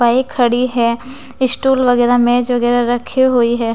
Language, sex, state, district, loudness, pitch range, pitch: Hindi, female, Bihar, West Champaran, -14 LUFS, 240-260 Hz, 245 Hz